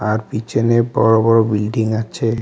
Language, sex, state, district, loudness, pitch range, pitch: Bengali, male, West Bengal, Alipurduar, -16 LUFS, 110-115 Hz, 110 Hz